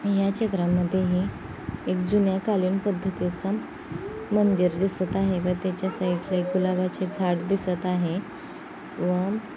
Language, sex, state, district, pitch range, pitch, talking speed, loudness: Marathi, female, Maharashtra, Sindhudurg, 180-195 Hz, 185 Hz, 130 wpm, -26 LUFS